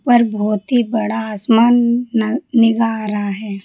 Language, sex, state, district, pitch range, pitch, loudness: Hindi, female, Rajasthan, Jaipur, 215-240 Hz, 225 Hz, -16 LUFS